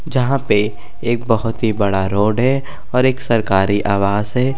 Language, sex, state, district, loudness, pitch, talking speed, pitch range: Bhojpuri, male, Uttar Pradesh, Gorakhpur, -17 LUFS, 115 Hz, 170 wpm, 100-130 Hz